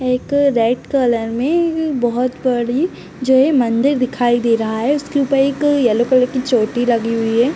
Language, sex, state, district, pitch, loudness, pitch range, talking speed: Hindi, female, Uttar Pradesh, Gorakhpur, 250 Hz, -16 LUFS, 235-275 Hz, 190 wpm